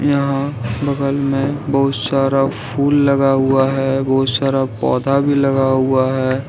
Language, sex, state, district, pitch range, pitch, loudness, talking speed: Hindi, male, Jharkhand, Ranchi, 135-140 Hz, 135 Hz, -16 LUFS, 150 wpm